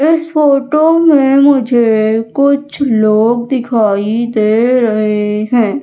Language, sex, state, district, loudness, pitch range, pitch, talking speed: Hindi, female, Madhya Pradesh, Umaria, -11 LUFS, 220-280 Hz, 240 Hz, 105 wpm